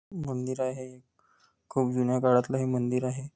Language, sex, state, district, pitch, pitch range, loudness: Marathi, male, Maharashtra, Nagpur, 130 Hz, 125-130 Hz, -28 LUFS